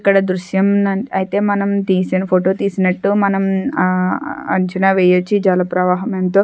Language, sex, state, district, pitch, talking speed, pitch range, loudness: Telugu, female, Andhra Pradesh, Chittoor, 190 Hz, 150 wpm, 185-200 Hz, -16 LUFS